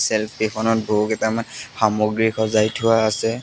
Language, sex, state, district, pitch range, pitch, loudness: Assamese, male, Assam, Sonitpur, 110-115 Hz, 110 Hz, -20 LUFS